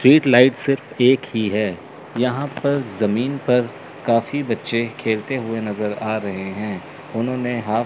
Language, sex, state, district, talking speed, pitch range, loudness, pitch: Hindi, male, Chandigarh, Chandigarh, 160 wpm, 110-130 Hz, -20 LUFS, 115 Hz